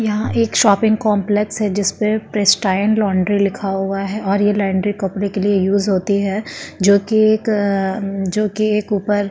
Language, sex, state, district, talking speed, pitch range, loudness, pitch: Hindi, female, Uttarakhand, Tehri Garhwal, 195 wpm, 195-210 Hz, -17 LUFS, 205 Hz